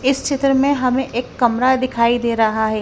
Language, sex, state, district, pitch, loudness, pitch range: Hindi, female, Himachal Pradesh, Shimla, 250 Hz, -17 LUFS, 235-270 Hz